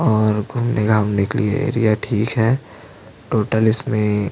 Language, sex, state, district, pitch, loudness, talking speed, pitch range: Hindi, male, Chhattisgarh, Jashpur, 110 Hz, -19 LUFS, 155 wpm, 105-115 Hz